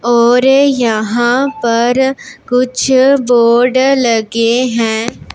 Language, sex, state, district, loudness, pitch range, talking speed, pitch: Hindi, female, Punjab, Pathankot, -11 LUFS, 235-260 Hz, 80 wpm, 245 Hz